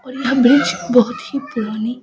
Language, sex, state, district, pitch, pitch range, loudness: Hindi, female, Bihar, Samastipur, 250 Hz, 235-270 Hz, -16 LUFS